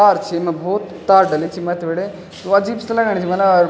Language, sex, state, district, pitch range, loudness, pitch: Garhwali, male, Uttarakhand, Tehri Garhwal, 175-200 Hz, -17 LUFS, 190 Hz